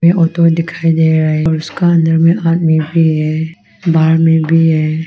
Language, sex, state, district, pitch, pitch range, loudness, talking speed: Hindi, female, Arunachal Pradesh, Longding, 160 Hz, 160-165 Hz, -12 LUFS, 200 wpm